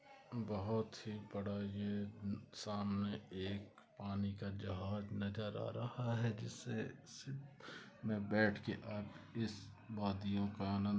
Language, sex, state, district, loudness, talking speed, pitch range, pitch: Hindi, male, West Bengal, Kolkata, -43 LUFS, 110 wpm, 100-110 Hz, 105 Hz